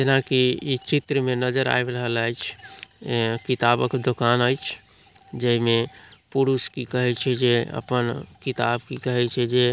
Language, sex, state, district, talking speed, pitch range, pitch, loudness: Maithili, male, Bihar, Samastipur, 155 wpm, 120-130 Hz, 125 Hz, -23 LUFS